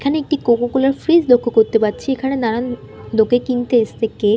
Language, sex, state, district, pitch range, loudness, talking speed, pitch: Bengali, female, West Bengal, North 24 Parganas, 225-270 Hz, -17 LUFS, 220 wpm, 245 Hz